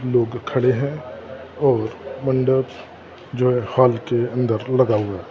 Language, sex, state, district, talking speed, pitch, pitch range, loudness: Hindi, male, Maharashtra, Gondia, 135 wpm, 125 Hz, 110-130 Hz, -20 LUFS